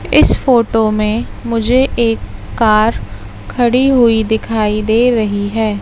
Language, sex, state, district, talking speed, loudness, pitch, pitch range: Hindi, female, Madhya Pradesh, Katni, 125 wpm, -13 LUFS, 225 Hz, 215-235 Hz